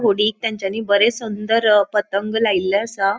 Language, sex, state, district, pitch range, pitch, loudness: Konkani, female, Goa, North and South Goa, 200-225 Hz, 210 Hz, -18 LUFS